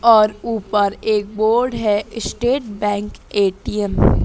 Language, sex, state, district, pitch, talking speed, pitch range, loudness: Hindi, female, Madhya Pradesh, Dhar, 210 Hz, 125 wpm, 205-225 Hz, -19 LUFS